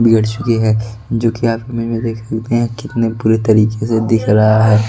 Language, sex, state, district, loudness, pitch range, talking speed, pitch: Hindi, male, Delhi, New Delhi, -15 LUFS, 110-115 Hz, 235 wpm, 115 Hz